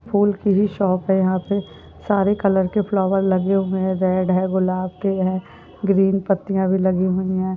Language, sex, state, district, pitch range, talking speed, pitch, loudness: Hindi, female, Chhattisgarh, Balrampur, 185-195 Hz, 190 wpm, 190 Hz, -20 LUFS